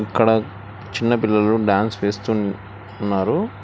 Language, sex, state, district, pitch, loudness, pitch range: Telugu, male, Telangana, Hyderabad, 105 Hz, -20 LUFS, 100-110 Hz